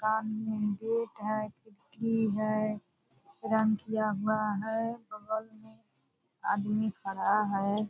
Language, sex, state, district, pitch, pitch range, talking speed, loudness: Hindi, female, Bihar, Purnia, 215 Hz, 210-220 Hz, 115 wpm, -32 LUFS